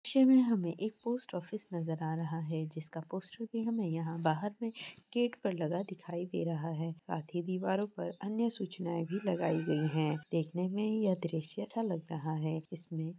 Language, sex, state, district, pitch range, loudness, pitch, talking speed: Hindi, female, Jharkhand, Jamtara, 160-210 Hz, -35 LUFS, 175 Hz, 175 wpm